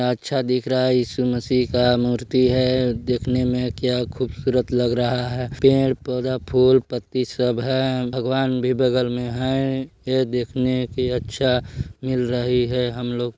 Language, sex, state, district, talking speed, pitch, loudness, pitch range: Hindi, male, Chhattisgarh, Balrampur, 160 wpm, 125 Hz, -21 LUFS, 125-130 Hz